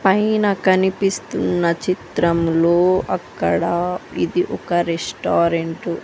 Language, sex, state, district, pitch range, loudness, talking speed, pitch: Telugu, female, Andhra Pradesh, Sri Satya Sai, 170-190 Hz, -19 LUFS, 80 wpm, 175 Hz